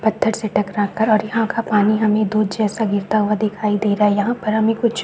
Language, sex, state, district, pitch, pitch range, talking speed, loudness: Hindi, male, Chhattisgarh, Balrampur, 215 Hz, 210-220 Hz, 250 wpm, -18 LUFS